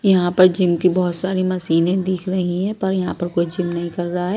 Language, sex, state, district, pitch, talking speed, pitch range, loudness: Hindi, female, Maharashtra, Mumbai Suburban, 180 Hz, 260 wpm, 175-185 Hz, -19 LUFS